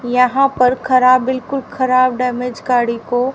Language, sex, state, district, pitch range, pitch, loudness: Hindi, female, Haryana, Rohtak, 250-260 Hz, 255 Hz, -15 LUFS